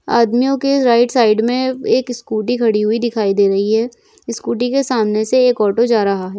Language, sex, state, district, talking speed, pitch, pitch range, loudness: Hindi, female, Uttar Pradesh, Jyotiba Phule Nagar, 205 wpm, 235 Hz, 215-245 Hz, -15 LUFS